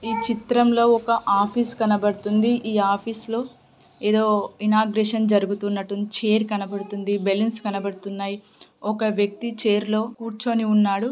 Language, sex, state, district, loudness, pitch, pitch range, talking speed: Telugu, female, Telangana, Karimnagar, -22 LUFS, 215 Hz, 205-225 Hz, 100 wpm